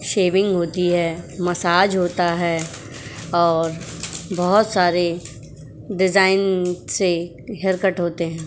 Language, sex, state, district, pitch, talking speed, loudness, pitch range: Hindi, female, Uttar Pradesh, Jyotiba Phule Nagar, 175 Hz, 105 wpm, -20 LUFS, 165-185 Hz